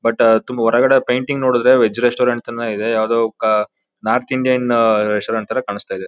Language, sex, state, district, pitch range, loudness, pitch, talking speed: Kannada, male, Karnataka, Mysore, 110-125 Hz, -16 LUFS, 115 Hz, 170 wpm